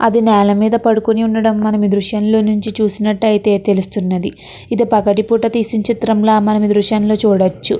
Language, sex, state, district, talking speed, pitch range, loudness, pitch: Telugu, female, Andhra Pradesh, Krishna, 140 wpm, 205-225 Hz, -14 LUFS, 215 Hz